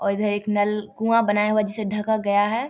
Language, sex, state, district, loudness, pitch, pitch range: Maithili, female, Bihar, Samastipur, -22 LUFS, 210 Hz, 205-220 Hz